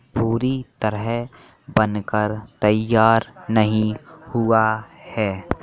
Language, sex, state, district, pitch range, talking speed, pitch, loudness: Hindi, male, Uttar Pradesh, Jalaun, 105-115 Hz, 75 wpm, 110 Hz, -21 LUFS